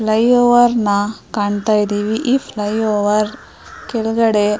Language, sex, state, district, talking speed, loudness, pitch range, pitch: Kannada, female, Karnataka, Mysore, 90 wpm, -16 LUFS, 210-230 Hz, 215 Hz